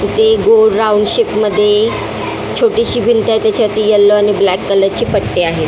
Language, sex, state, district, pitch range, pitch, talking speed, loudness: Marathi, female, Maharashtra, Mumbai Suburban, 205-235 Hz, 215 Hz, 170 wpm, -12 LUFS